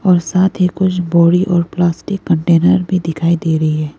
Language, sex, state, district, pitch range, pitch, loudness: Hindi, female, Arunachal Pradesh, Lower Dibang Valley, 165-185 Hz, 175 Hz, -14 LUFS